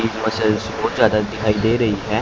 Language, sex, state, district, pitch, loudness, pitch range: Hindi, male, Haryana, Charkhi Dadri, 110 Hz, -19 LUFS, 105-110 Hz